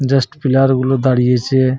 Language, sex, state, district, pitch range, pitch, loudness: Bengali, male, Jharkhand, Jamtara, 130-135 Hz, 130 Hz, -14 LUFS